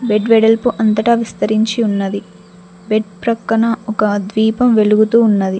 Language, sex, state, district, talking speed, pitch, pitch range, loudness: Telugu, female, Telangana, Mahabubabad, 120 wpm, 215 Hz, 205-225 Hz, -14 LUFS